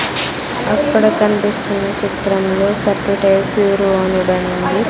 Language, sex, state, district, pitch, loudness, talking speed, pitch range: Telugu, female, Andhra Pradesh, Sri Satya Sai, 200 Hz, -15 LUFS, 75 wpm, 195-205 Hz